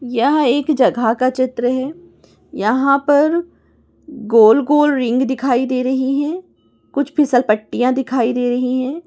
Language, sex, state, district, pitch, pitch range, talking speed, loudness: Hindi, female, Chhattisgarh, Raigarh, 260 Hz, 245-290 Hz, 140 wpm, -16 LUFS